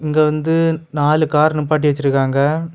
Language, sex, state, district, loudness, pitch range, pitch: Tamil, male, Tamil Nadu, Kanyakumari, -16 LUFS, 145-155 Hz, 155 Hz